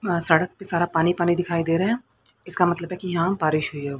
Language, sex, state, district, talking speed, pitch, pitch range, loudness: Hindi, female, Haryana, Rohtak, 255 wpm, 175 Hz, 165-180 Hz, -23 LUFS